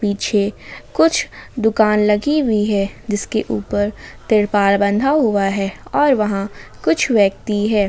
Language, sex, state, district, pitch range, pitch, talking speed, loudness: Hindi, female, Jharkhand, Ranchi, 200-220 Hz, 210 Hz, 130 wpm, -17 LUFS